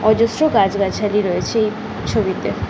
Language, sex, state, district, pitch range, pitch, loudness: Bengali, female, West Bengal, Jhargram, 205-225 Hz, 215 Hz, -18 LUFS